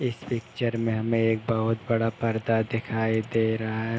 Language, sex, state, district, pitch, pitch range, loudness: Hindi, male, Uttar Pradesh, Hamirpur, 115 Hz, 110-115 Hz, -26 LUFS